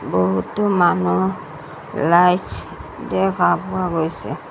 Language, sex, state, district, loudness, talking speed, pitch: Assamese, female, Assam, Sonitpur, -19 LUFS, 95 wpm, 175 Hz